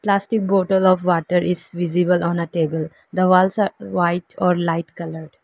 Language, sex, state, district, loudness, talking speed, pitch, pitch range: English, female, Arunachal Pradesh, Lower Dibang Valley, -19 LUFS, 175 wpm, 180 Hz, 170-185 Hz